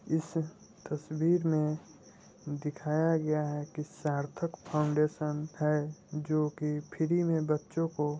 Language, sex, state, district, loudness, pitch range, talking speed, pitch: Hindi, male, Bihar, Muzaffarpur, -32 LUFS, 150-160 Hz, 115 wpm, 150 Hz